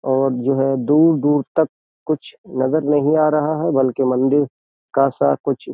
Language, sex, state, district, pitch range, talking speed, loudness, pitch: Hindi, male, Uttar Pradesh, Jyotiba Phule Nagar, 130-150 Hz, 180 wpm, -18 LUFS, 135 Hz